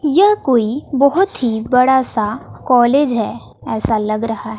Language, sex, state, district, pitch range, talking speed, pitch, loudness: Hindi, female, Bihar, West Champaran, 225-280 Hz, 145 wpm, 250 Hz, -15 LUFS